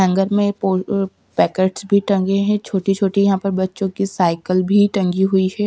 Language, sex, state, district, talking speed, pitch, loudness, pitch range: Hindi, female, Punjab, Kapurthala, 180 wpm, 195 Hz, -18 LUFS, 190-200 Hz